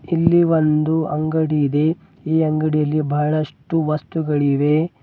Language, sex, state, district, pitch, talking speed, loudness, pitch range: Kannada, male, Karnataka, Bidar, 155 Hz, 95 wpm, -19 LUFS, 150-160 Hz